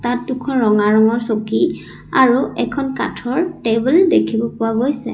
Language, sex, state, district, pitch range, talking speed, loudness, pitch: Assamese, female, Assam, Sonitpur, 225-265 Hz, 140 wpm, -17 LUFS, 245 Hz